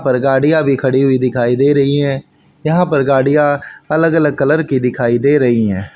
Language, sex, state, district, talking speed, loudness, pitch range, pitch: Hindi, male, Haryana, Rohtak, 200 wpm, -13 LUFS, 130-150 Hz, 140 Hz